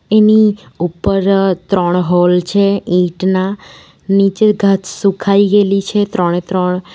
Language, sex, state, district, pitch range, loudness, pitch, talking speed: Gujarati, female, Gujarat, Valsad, 180-200 Hz, -13 LUFS, 195 Hz, 110 wpm